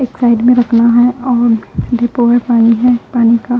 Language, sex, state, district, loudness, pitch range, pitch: Hindi, female, Haryana, Charkhi Dadri, -11 LUFS, 235-245 Hz, 240 Hz